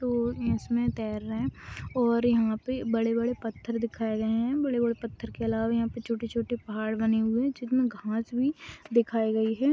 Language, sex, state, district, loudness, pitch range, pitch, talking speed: Hindi, female, Maharashtra, Solapur, -29 LUFS, 220-240 Hz, 230 Hz, 195 wpm